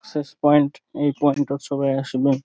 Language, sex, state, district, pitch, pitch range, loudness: Bengali, male, West Bengal, Dakshin Dinajpur, 140 Hz, 140-145 Hz, -21 LUFS